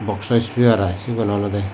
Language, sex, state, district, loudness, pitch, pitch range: Chakma, male, Tripura, Dhalai, -19 LUFS, 105 Hz, 100-115 Hz